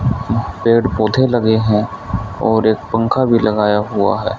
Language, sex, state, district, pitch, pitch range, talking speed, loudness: Hindi, male, Haryana, Rohtak, 110 Hz, 105-115 Hz, 150 wpm, -15 LUFS